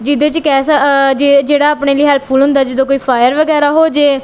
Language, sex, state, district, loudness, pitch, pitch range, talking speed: Punjabi, female, Punjab, Kapurthala, -10 LUFS, 280 Hz, 275-295 Hz, 225 wpm